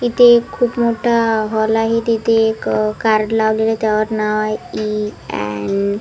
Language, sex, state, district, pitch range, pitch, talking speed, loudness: Marathi, female, Maharashtra, Washim, 215-230 Hz, 220 Hz, 170 wpm, -16 LUFS